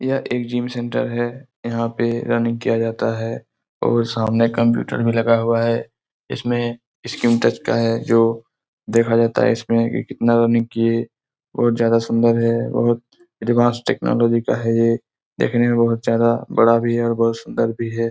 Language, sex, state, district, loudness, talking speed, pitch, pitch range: Hindi, male, Bihar, Araria, -19 LUFS, 185 wpm, 115 Hz, 115-120 Hz